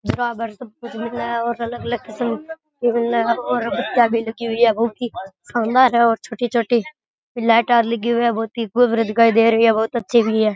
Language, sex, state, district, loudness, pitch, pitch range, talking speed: Rajasthani, male, Rajasthan, Nagaur, -19 LUFS, 235 Hz, 225-240 Hz, 60 wpm